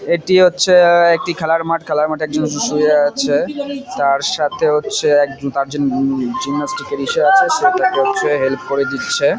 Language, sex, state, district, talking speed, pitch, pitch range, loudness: Bengali, male, West Bengal, Jalpaiguri, 180 wpm, 155 Hz, 140-195 Hz, -15 LUFS